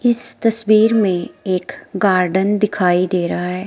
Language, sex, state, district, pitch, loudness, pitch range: Hindi, female, Himachal Pradesh, Shimla, 195 Hz, -16 LUFS, 180-215 Hz